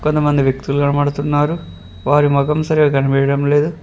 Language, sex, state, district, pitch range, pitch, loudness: Telugu, male, Telangana, Mahabubabad, 140-150 Hz, 145 Hz, -16 LUFS